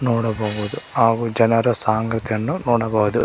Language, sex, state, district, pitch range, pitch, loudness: Kannada, male, Karnataka, Koppal, 110-115 Hz, 115 Hz, -19 LUFS